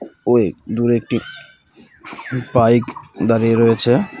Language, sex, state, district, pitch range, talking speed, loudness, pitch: Bengali, male, West Bengal, Cooch Behar, 115-120 Hz, 85 wpm, -17 LUFS, 120 Hz